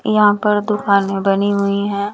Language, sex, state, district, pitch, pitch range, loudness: Hindi, female, Bihar, West Champaran, 200 Hz, 200-210 Hz, -16 LUFS